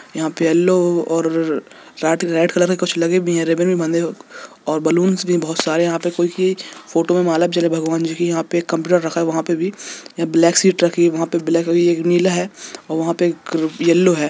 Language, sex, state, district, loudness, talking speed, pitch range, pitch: Hindi, male, Jharkhand, Jamtara, -17 LUFS, 180 wpm, 165-175 Hz, 170 Hz